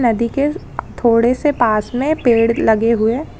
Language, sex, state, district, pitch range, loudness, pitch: Hindi, female, Rajasthan, Nagaur, 230-275 Hz, -15 LUFS, 235 Hz